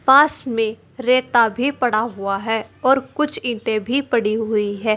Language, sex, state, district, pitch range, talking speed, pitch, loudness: Hindi, female, Uttar Pradesh, Saharanpur, 220-260 Hz, 170 wpm, 235 Hz, -19 LUFS